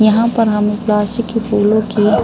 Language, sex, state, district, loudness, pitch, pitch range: Hindi, female, Uttar Pradesh, Budaun, -14 LUFS, 215 Hz, 210-225 Hz